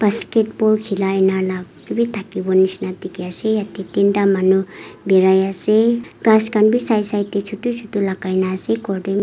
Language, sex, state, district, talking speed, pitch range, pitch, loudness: Nagamese, female, Nagaland, Kohima, 170 wpm, 190-220 Hz, 200 Hz, -18 LUFS